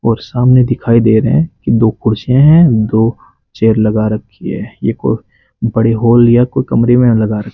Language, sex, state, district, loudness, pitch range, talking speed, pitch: Hindi, male, Rajasthan, Bikaner, -11 LUFS, 110-125 Hz, 200 wpm, 115 Hz